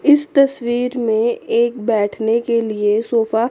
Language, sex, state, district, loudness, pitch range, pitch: Hindi, female, Chandigarh, Chandigarh, -17 LUFS, 220-245 Hz, 235 Hz